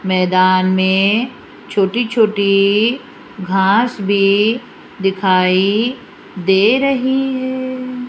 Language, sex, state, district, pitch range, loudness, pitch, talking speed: Hindi, female, Rajasthan, Jaipur, 190-245 Hz, -15 LUFS, 200 Hz, 75 wpm